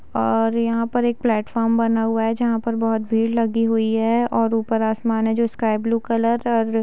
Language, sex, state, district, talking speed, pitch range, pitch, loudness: Hindi, female, Bihar, Gaya, 220 wpm, 225-230 Hz, 225 Hz, -20 LUFS